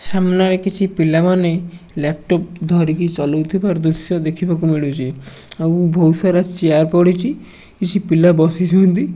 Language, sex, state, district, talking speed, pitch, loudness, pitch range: Odia, male, Odisha, Nuapada, 110 wpm, 175 Hz, -16 LUFS, 160-185 Hz